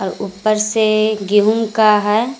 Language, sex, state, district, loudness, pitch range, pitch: Hindi, female, Jharkhand, Garhwa, -15 LUFS, 205-220 Hz, 215 Hz